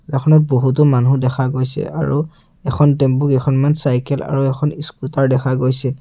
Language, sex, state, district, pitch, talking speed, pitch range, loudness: Assamese, male, Assam, Sonitpur, 135 Hz, 150 wpm, 130-150 Hz, -16 LUFS